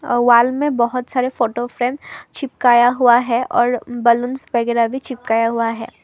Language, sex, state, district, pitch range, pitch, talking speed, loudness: Hindi, female, Assam, Kamrup Metropolitan, 235-250 Hz, 245 Hz, 170 wpm, -17 LUFS